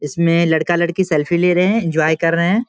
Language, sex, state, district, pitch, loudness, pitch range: Hindi, male, Bihar, Samastipur, 170 Hz, -16 LUFS, 160-180 Hz